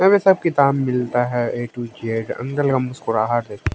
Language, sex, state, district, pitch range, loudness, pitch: Hindi, male, Haryana, Jhajjar, 115-140 Hz, -20 LUFS, 125 Hz